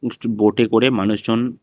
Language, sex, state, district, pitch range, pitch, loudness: Bengali, male, Tripura, West Tripura, 105-120 Hz, 115 Hz, -18 LUFS